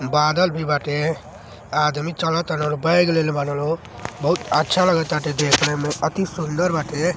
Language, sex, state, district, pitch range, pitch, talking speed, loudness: Hindi, male, Uttar Pradesh, Deoria, 150-165 Hz, 150 Hz, 150 wpm, -20 LUFS